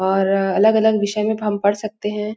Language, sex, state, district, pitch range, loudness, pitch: Hindi, female, Chhattisgarh, Raigarh, 200-215 Hz, -18 LUFS, 210 Hz